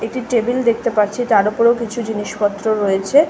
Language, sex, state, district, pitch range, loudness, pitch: Bengali, female, West Bengal, Malda, 210-240 Hz, -17 LUFS, 230 Hz